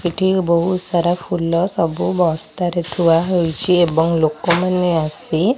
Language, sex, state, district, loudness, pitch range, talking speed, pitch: Odia, female, Odisha, Khordha, -17 LUFS, 165-180 Hz, 130 wpm, 170 Hz